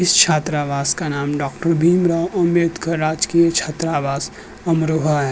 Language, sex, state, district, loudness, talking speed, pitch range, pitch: Hindi, male, Uttar Pradesh, Jyotiba Phule Nagar, -18 LUFS, 125 wpm, 145-170 Hz, 160 Hz